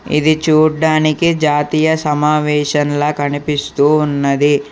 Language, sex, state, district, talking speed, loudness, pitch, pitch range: Telugu, male, Telangana, Hyderabad, 75 wpm, -14 LUFS, 150 Hz, 145-155 Hz